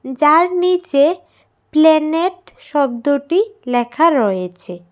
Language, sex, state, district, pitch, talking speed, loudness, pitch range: Bengali, female, Tripura, West Tripura, 300 Hz, 75 wpm, -15 LUFS, 250-340 Hz